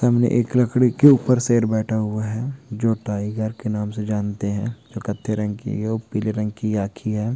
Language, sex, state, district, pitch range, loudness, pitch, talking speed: Hindi, male, West Bengal, Jalpaiguri, 105-120 Hz, -21 LUFS, 110 Hz, 205 wpm